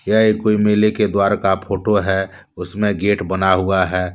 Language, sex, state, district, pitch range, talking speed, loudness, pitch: Hindi, male, Jharkhand, Deoghar, 95-105 Hz, 205 wpm, -17 LUFS, 100 Hz